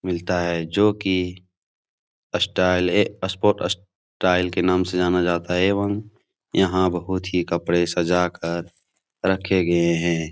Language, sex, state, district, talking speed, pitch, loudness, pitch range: Hindi, male, Bihar, Supaul, 140 wpm, 90 Hz, -22 LUFS, 85-95 Hz